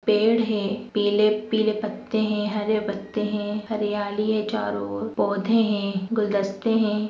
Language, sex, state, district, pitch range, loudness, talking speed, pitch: Hindi, female, Maharashtra, Nagpur, 205-215 Hz, -24 LUFS, 145 wpm, 210 Hz